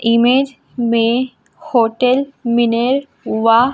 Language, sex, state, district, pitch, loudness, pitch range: Hindi, male, Chhattisgarh, Raipur, 240 Hz, -16 LUFS, 230-260 Hz